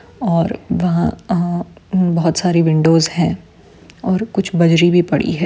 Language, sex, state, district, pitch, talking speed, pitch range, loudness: Hindi, female, Bihar, Saran, 170 Hz, 140 wpm, 165-180 Hz, -16 LUFS